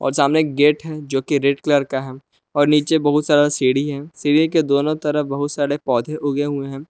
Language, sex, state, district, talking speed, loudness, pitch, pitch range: Hindi, male, Jharkhand, Palamu, 225 wpm, -18 LUFS, 145 Hz, 140-150 Hz